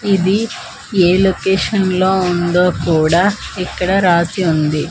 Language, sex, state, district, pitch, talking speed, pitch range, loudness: Telugu, female, Andhra Pradesh, Manyam, 180 Hz, 110 wpm, 175-190 Hz, -15 LUFS